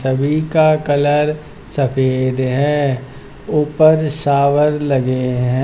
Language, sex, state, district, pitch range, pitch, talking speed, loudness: Hindi, male, Haryana, Charkhi Dadri, 130-150 Hz, 145 Hz, 95 wpm, -15 LUFS